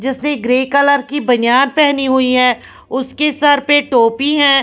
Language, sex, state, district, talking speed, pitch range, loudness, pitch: Hindi, female, Bihar, Patna, 170 wpm, 255-290 Hz, -13 LUFS, 275 Hz